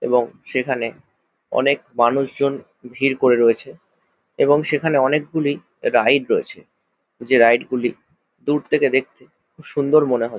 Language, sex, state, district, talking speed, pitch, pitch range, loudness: Bengali, male, West Bengal, Jhargram, 125 wpm, 135 Hz, 120-145 Hz, -19 LUFS